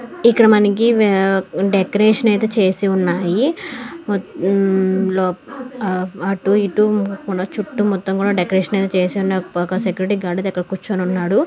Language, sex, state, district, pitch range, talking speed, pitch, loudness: Telugu, female, Andhra Pradesh, Anantapur, 185-210 Hz, 115 wpm, 195 Hz, -17 LUFS